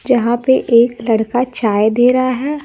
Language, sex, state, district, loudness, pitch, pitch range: Hindi, female, Bihar, Kaimur, -14 LUFS, 245 Hz, 230-255 Hz